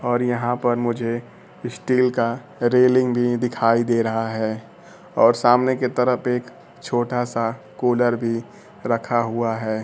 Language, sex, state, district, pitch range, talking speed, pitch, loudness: Hindi, male, Bihar, Kaimur, 115-125 Hz, 145 wpm, 120 Hz, -21 LUFS